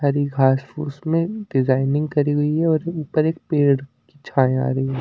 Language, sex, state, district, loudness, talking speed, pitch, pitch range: Hindi, male, Delhi, New Delhi, -20 LUFS, 180 wpm, 145 Hz, 135-155 Hz